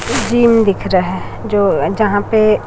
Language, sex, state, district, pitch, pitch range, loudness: Hindi, female, Chhattisgarh, Raipur, 215 Hz, 200-225 Hz, -14 LUFS